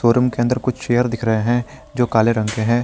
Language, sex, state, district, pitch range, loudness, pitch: Hindi, male, Jharkhand, Garhwa, 115-125 Hz, -18 LUFS, 120 Hz